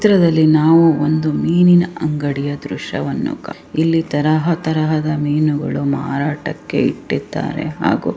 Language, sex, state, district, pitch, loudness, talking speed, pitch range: Kannada, female, Karnataka, Raichur, 155 Hz, -17 LUFS, 110 wpm, 150-165 Hz